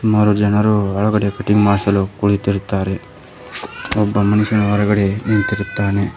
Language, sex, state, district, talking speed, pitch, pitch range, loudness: Kannada, male, Karnataka, Koppal, 95 wpm, 105 Hz, 100-105 Hz, -16 LUFS